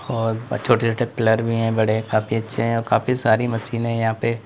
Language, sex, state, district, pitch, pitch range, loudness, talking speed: Hindi, male, Uttar Pradesh, Lalitpur, 115 Hz, 110-115 Hz, -21 LUFS, 230 wpm